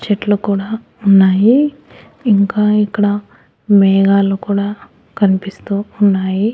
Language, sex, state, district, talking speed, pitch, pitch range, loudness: Telugu, male, Andhra Pradesh, Annamaya, 80 wpm, 205 Hz, 195-210 Hz, -14 LUFS